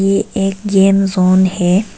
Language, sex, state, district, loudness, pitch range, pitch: Hindi, female, Arunachal Pradesh, Papum Pare, -13 LUFS, 185-195 Hz, 195 Hz